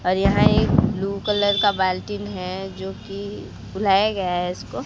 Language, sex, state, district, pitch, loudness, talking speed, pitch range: Hindi, female, Odisha, Sambalpur, 195 Hz, -21 LUFS, 175 wpm, 185-205 Hz